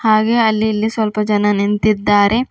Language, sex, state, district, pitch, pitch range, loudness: Kannada, female, Karnataka, Bidar, 215 Hz, 205-220 Hz, -15 LUFS